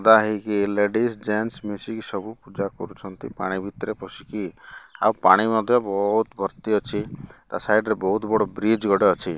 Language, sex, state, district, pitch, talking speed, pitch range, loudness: Odia, male, Odisha, Malkangiri, 105 Hz, 160 wpm, 100-110 Hz, -23 LUFS